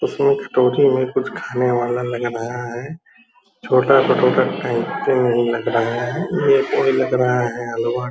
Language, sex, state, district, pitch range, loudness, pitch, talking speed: Hindi, female, Bihar, Purnia, 120-140 Hz, -18 LUFS, 125 Hz, 75 wpm